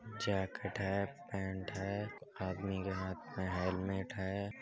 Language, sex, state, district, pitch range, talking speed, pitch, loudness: Hindi, male, Uttar Pradesh, Budaun, 95-100 Hz, 130 wpm, 95 Hz, -40 LUFS